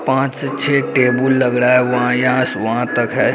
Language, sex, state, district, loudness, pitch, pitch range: Hindi, male, Bihar, Araria, -16 LUFS, 130 Hz, 125-135 Hz